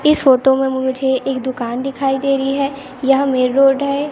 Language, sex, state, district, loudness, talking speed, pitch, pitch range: Hindi, female, Chhattisgarh, Raipur, -16 LUFS, 205 wpm, 270 Hz, 260-275 Hz